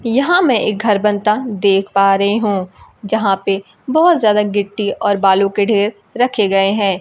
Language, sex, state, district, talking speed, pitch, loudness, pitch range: Hindi, female, Bihar, Kaimur, 180 wpm, 205 Hz, -15 LUFS, 195-220 Hz